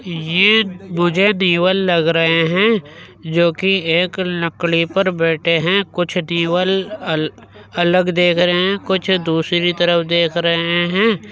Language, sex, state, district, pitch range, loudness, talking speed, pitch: Hindi, male, Uttar Pradesh, Jyotiba Phule Nagar, 170-190 Hz, -16 LUFS, 130 wpm, 175 Hz